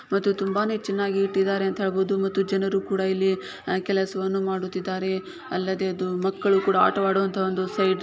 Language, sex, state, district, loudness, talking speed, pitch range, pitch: Kannada, female, Karnataka, Shimoga, -24 LUFS, 165 wpm, 190-195 Hz, 195 Hz